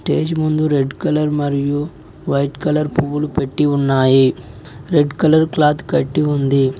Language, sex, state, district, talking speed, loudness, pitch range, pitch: Telugu, male, Telangana, Mahabubabad, 130 wpm, -16 LUFS, 140-155 Hz, 145 Hz